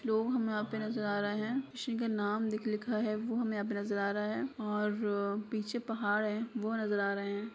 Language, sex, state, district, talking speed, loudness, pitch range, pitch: Hindi, female, Jharkhand, Sahebganj, 255 wpm, -35 LUFS, 205-225 Hz, 215 Hz